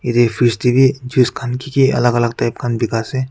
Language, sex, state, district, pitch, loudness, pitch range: Nagamese, male, Nagaland, Kohima, 125 Hz, -16 LUFS, 120-130 Hz